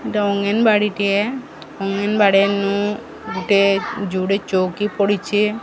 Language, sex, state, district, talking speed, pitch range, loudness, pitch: Odia, male, Odisha, Sambalpur, 75 wpm, 195-210 Hz, -18 LUFS, 200 Hz